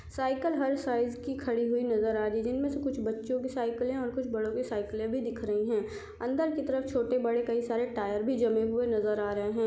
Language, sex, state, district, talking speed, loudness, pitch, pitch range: Hindi, female, Chhattisgarh, Sarguja, 250 wpm, -31 LUFS, 240 Hz, 220-260 Hz